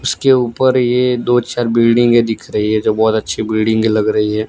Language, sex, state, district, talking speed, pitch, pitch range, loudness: Hindi, male, Gujarat, Gandhinagar, 225 wpm, 115 Hz, 110-120 Hz, -14 LUFS